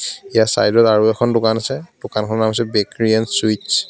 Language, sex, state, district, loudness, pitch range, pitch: Assamese, male, Assam, Kamrup Metropolitan, -17 LUFS, 110-115 Hz, 110 Hz